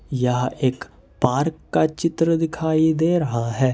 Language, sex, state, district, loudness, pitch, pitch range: Hindi, male, Jharkhand, Ranchi, -21 LUFS, 155 Hz, 125-165 Hz